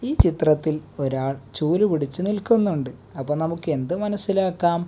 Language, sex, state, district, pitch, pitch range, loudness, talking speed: Malayalam, male, Kerala, Kasaragod, 160 Hz, 140-195 Hz, -22 LUFS, 135 wpm